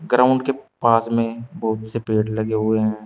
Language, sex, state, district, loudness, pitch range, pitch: Hindi, male, Uttar Pradesh, Shamli, -20 LUFS, 110-120 Hz, 115 Hz